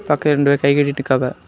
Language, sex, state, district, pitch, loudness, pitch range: Tamil, male, Tamil Nadu, Kanyakumari, 140 Hz, -16 LUFS, 135-145 Hz